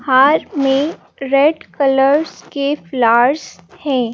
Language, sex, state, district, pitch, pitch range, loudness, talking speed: Hindi, female, Madhya Pradesh, Bhopal, 275 Hz, 265-295 Hz, -15 LUFS, 100 wpm